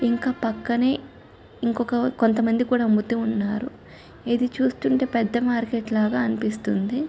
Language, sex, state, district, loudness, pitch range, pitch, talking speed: Telugu, female, Andhra Pradesh, Chittoor, -23 LUFS, 225-245 Hz, 235 Hz, 120 wpm